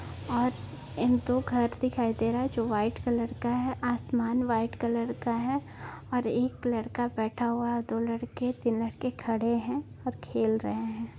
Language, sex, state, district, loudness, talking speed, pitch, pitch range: Hindi, female, Maharashtra, Nagpur, -30 LUFS, 180 wpm, 235 Hz, 225-245 Hz